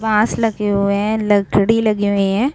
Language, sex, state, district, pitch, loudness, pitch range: Hindi, female, Chhattisgarh, Sarguja, 210 Hz, -16 LUFS, 200-220 Hz